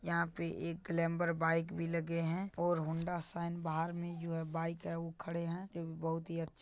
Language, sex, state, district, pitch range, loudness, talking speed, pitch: Hindi, male, Bihar, Purnia, 165-170 Hz, -38 LUFS, 215 wpm, 170 Hz